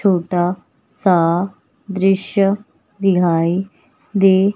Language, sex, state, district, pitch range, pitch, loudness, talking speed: Hindi, female, Himachal Pradesh, Shimla, 180-200 Hz, 195 Hz, -17 LUFS, 65 wpm